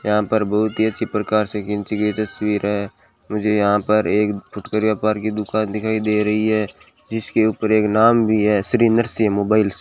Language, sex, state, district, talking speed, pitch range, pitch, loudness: Hindi, male, Rajasthan, Bikaner, 200 wpm, 105-110 Hz, 105 Hz, -19 LUFS